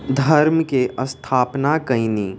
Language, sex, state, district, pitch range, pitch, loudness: Bhojpuri, male, Bihar, East Champaran, 125-150 Hz, 135 Hz, -18 LUFS